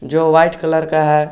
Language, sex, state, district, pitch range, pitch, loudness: Hindi, male, Jharkhand, Garhwa, 150-160 Hz, 160 Hz, -14 LUFS